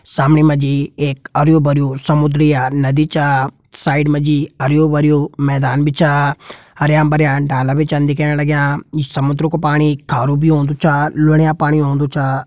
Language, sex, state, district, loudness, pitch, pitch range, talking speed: Garhwali, male, Uttarakhand, Tehri Garhwal, -14 LUFS, 150 Hz, 140-155 Hz, 170 wpm